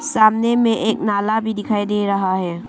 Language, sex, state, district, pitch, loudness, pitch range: Hindi, female, Arunachal Pradesh, Longding, 215 Hz, -18 LUFS, 200-225 Hz